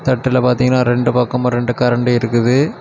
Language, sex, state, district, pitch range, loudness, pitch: Tamil, male, Tamil Nadu, Kanyakumari, 120-125 Hz, -15 LUFS, 125 Hz